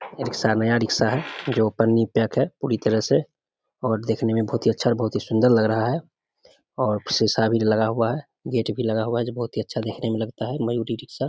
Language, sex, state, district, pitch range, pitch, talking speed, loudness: Hindi, male, Bihar, Samastipur, 110-120 Hz, 115 Hz, 235 wpm, -23 LUFS